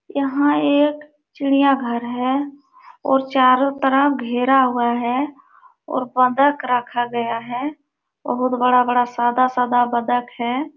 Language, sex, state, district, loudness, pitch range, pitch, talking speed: Hindi, female, Uttar Pradesh, Jalaun, -19 LUFS, 245-285 Hz, 260 Hz, 115 wpm